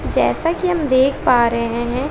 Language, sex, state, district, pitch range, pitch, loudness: Hindi, female, Bihar, West Champaran, 240-310 Hz, 260 Hz, -17 LUFS